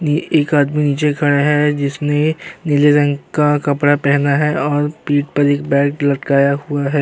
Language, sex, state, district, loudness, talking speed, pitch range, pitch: Hindi, male, Uttar Pradesh, Jyotiba Phule Nagar, -15 LUFS, 180 wpm, 145-150 Hz, 145 Hz